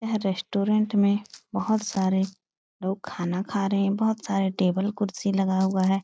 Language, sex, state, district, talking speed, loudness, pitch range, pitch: Hindi, female, Uttar Pradesh, Etah, 170 wpm, -26 LUFS, 190-205 Hz, 195 Hz